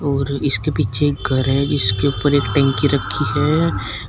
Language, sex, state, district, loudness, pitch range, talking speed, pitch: Hindi, male, Uttar Pradesh, Shamli, -17 LUFS, 130-145 Hz, 175 wpm, 140 Hz